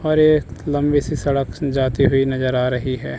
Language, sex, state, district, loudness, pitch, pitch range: Hindi, male, Chandigarh, Chandigarh, -19 LUFS, 140 Hz, 130-145 Hz